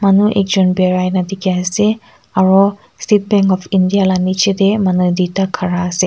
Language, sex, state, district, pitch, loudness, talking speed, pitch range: Nagamese, female, Nagaland, Kohima, 190 Hz, -14 LUFS, 180 wpm, 185-200 Hz